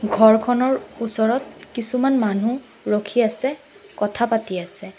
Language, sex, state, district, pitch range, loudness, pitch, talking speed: Assamese, female, Assam, Sonitpur, 210-250 Hz, -21 LUFS, 225 Hz, 110 wpm